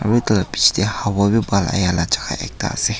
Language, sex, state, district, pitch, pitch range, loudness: Nagamese, male, Nagaland, Kohima, 100 Hz, 95-110 Hz, -18 LUFS